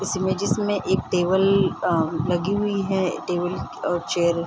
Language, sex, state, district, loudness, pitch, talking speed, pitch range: Hindi, female, Bihar, Sitamarhi, -23 LUFS, 185 Hz, 175 wpm, 175-195 Hz